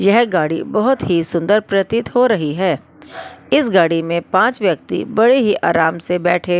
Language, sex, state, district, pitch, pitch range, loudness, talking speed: Hindi, female, Delhi, New Delhi, 185 Hz, 170-220 Hz, -16 LUFS, 175 wpm